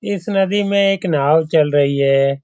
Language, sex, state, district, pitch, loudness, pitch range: Hindi, male, Bihar, Saran, 160 Hz, -16 LUFS, 140-195 Hz